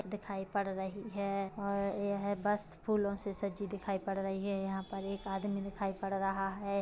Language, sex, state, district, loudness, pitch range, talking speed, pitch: Hindi, female, Chhattisgarh, Kabirdham, -37 LUFS, 195-200 Hz, 195 wpm, 200 Hz